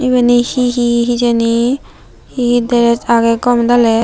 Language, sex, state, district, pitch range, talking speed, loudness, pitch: Chakma, female, Tripura, Unakoti, 235-245 Hz, 150 wpm, -13 LUFS, 240 Hz